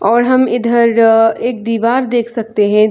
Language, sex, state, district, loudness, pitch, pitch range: Hindi, female, Chhattisgarh, Sarguja, -12 LUFS, 230 Hz, 225-240 Hz